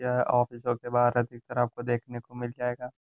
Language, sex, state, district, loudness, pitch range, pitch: Hindi, male, Uttar Pradesh, Gorakhpur, -29 LUFS, 120-125 Hz, 120 Hz